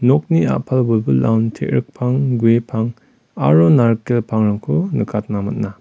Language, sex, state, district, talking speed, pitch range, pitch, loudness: Garo, male, Meghalaya, West Garo Hills, 105 wpm, 105-125 Hz, 115 Hz, -17 LUFS